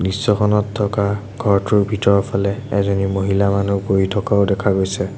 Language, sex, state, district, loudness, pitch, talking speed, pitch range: Assamese, male, Assam, Sonitpur, -18 LUFS, 100 Hz, 140 wpm, 100-105 Hz